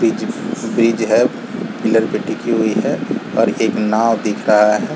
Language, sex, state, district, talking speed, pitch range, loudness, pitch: Hindi, male, Bihar, Saran, 155 wpm, 105-115 Hz, -17 LUFS, 110 Hz